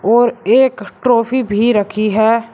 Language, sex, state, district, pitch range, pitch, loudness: Hindi, male, Uttar Pradesh, Shamli, 215-240 Hz, 230 Hz, -14 LUFS